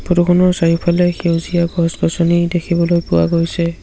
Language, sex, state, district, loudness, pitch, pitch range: Assamese, male, Assam, Sonitpur, -15 LUFS, 170 Hz, 170-175 Hz